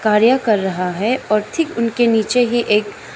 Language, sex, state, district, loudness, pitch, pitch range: Hindi, female, Arunachal Pradesh, Lower Dibang Valley, -17 LUFS, 225 Hz, 210-240 Hz